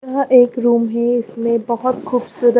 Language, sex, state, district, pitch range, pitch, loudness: Hindi, female, Punjab, Pathankot, 235-255 Hz, 240 Hz, -16 LUFS